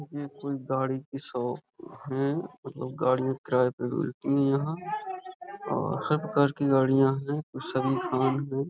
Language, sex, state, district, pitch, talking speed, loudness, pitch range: Hindi, male, Uttar Pradesh, Budaun, 140 Hz, 145 wpm, -28 LUFS, 130-150 Hz